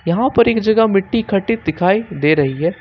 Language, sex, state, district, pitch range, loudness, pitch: Hindi, male, Jharkhand, Ranchi, 165-225 Hz, -15 LUFS, 195 Hz